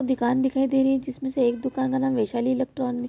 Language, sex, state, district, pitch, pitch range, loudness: Hindi, female, Bihar, Vaishali, 260 Hz, 245-265 Hz, -24 LUFS